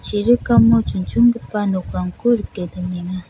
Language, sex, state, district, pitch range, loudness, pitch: Garo, female, Meghalaya, South Garo Hills, 170-210 Hz, -18 LUFS, 180 Hz